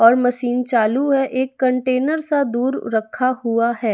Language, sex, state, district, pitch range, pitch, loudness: Hindi, female, Bihar, West Champaran, 235-260 Hz, 255 Hz, -19 LUFS